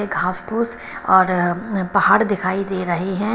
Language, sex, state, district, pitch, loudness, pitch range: Hindi, female, Himachal Pradesh, Shimla, 190 Hz, -19 LUFS, 185-205 Hz